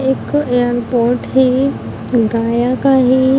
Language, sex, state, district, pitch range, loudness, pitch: Hindi, female, Bihar, Gaya, 240-265 Hz, -14 LUFS, 255 Hz